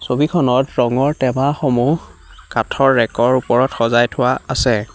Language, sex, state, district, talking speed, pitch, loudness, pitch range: Assamese, male, Assam, Hailakandi, 110 wpm, 125 Hz, -16 LUFS, 120-135 Hz